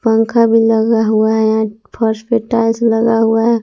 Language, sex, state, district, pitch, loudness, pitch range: Hindi, female, Jharkhand, Palamu, 225 Hz, -13 LUFS, 220-230 Hz